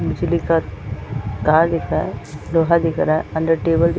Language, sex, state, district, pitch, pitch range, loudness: Hindi, female, Chhattisgarh, Balrampur, 165 Hz, 135-165 Hz, -19 LUFS